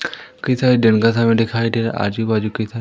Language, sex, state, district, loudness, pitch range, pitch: Hindi, female, Madhya Pradesh, Umaria, -17 LUFS, 110-115 Hz, 115 Hz